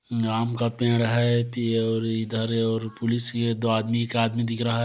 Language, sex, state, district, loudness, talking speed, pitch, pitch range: Hindi, male, Chhattisgarh, Korba, -25 LUFS, 210 wpm, 115 Hz, 115-120 Hz